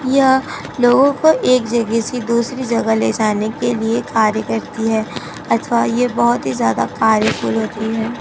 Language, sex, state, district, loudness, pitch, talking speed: Hindi, female, Uttar Pradesh, Jyotiba Phule Nagar, -16 LUFS, 225 Hz, 170 wpm